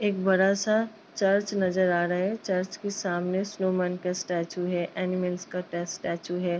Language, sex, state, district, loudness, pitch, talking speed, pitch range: Hindi, female, Uttar Pradesh, Ghazipur, -28 LUFS, 185 Hz, 175 wpm, 180-195 Hz